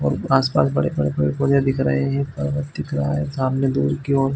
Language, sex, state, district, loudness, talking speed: Hindi, male, Chhattisgarh, Bilaspur, -21 LUFS, 235 wpm